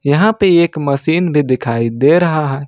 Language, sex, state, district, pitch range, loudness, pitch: Hindi, male, Jharkhand, Ranchi, 135-170 Hz, -13 LUFS, 150 Hz